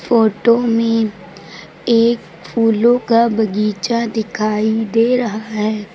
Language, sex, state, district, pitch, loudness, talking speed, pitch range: Hindi, female, Uttar Pradesh, Lucknow, 225 Hz, -16 LUFS, 100 wpm, 215-235 Hz